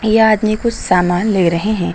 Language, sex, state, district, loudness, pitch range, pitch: Hindi, female, Uttar Pradesh, Lucknow, -14 LUFS, 180-220 Hz, 215 Hz